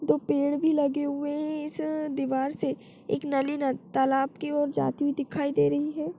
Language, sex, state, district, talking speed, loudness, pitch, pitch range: Hindi, female, Chhattisgarh, Kabirdham, 185 wpm, -28 LUFS, 285 Hz, 270-300 Hz